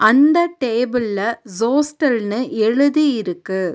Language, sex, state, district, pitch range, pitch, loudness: Tamil, female, Tamil Nadu, Nilgiris, 220-280 Hz, 240 Hz, -18 LUFS